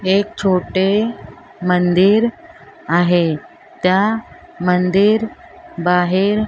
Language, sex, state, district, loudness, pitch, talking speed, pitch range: Marathi, female, Maharashtra, Mumbai Suburban, -16 LUFS, 190 Hz, 75 wpm, 180-220 Hz